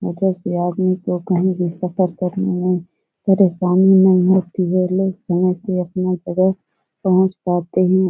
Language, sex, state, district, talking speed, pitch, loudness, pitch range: Hindi, female, Bihar, Jahanabad, 95 wpm, 185 Hz, -18 LUFS, 180-190 Hz